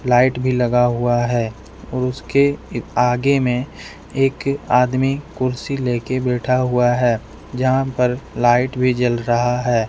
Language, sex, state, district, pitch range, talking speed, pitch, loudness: Hindi, male, Jharkhand, Deoghar, 120-130 Hz, 140 wpm, 125 Hz, -18 LUFS